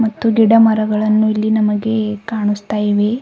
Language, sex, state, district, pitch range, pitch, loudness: Kannada, female, Karnataka, Bidar, 210-225 Hz, 215 Hz, -15 LUFS